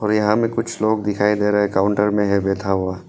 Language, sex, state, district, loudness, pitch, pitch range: Hindi, male, Arunachal Pradesh, Lower Dibang Valley, -19 LUFS, 105 Hz, 100-105 Hz